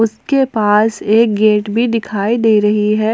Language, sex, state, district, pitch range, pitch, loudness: Hindi, female, Jharkhand, Ranchi, 210-230 Hz, 215 Hz, -13 LUFS